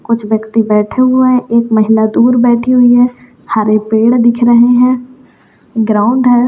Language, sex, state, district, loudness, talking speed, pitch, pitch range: Kumaoni, female, Uttarakhand, Tehri Garhwal, -10 LUFS, 165 wpm, 240 Hz, 220-250 Hz